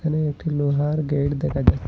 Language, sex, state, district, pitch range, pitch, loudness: Bengali, male, Assam, Hailakandi, 145-155 Hz, 150 Hz, -22 LUFS